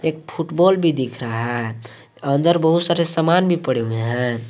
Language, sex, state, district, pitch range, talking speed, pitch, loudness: Hindi, male, Jharkhand, Garhwa, 120-170 Hz, 185 wpm, 140 Hz, -18 LUFS